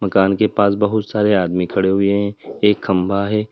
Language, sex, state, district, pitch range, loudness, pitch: Hindi, male, Uttar Pradesh, Lalitpur, 95-105 Hz, -17 LUFS, 100 Hz